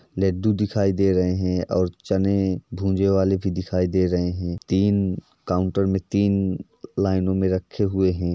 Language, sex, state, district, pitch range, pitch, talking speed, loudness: Hindi, male, Uttar Pradesh, Varanasi, 90-100 Hz, 95 Hz, 160 wpm, -22 LUFS